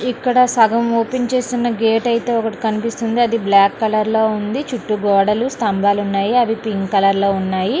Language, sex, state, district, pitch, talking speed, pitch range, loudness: Telugu, female, Andhra Pradesh, Srikakulam, 225 Hz, 160 wpm, 205-240 Hz, -16 LUFS